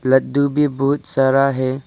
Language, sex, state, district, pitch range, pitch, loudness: Hindi, male, Arunachal Pradesh, Lower Dibang Valley, 130-140 Hz, 135 Hz, -17 LUFS